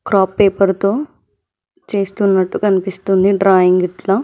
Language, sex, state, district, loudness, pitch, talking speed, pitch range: Telugu, female, Telangana, Mahabubabad, -15 LUFS, 195 Hz, 100 wpm, 190-200 Hz